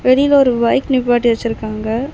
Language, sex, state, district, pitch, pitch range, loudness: Tamil, female, Tamil Nadu, Chennai, 240 Hz, 230-270 Hz, -15 LUFS